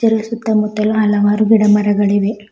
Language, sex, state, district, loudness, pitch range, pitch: Kannada, female, Karnataka, Bidar, -14 LUFS, 205-220 Hz, 210 Hz